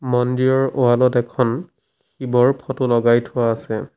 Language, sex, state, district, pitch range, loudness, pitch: Assamese, male, Assam, Sonitpur, 120-130 Hz, -18 LUFS, 125 Hz